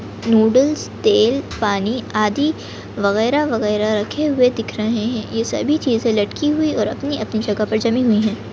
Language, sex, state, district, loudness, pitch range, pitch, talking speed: Hindi, female, Maharashtra, Sindhudurg, -18 LUFS, 215-290 Hz, 230 Hz, 155 wpm